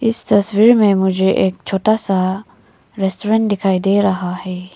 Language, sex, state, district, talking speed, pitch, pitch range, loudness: Hindi, female, Arunachal Pradesh, Lower Dibang Valley, 150 wpm, 195 Hz, 190-210 Hz, -15 LUFS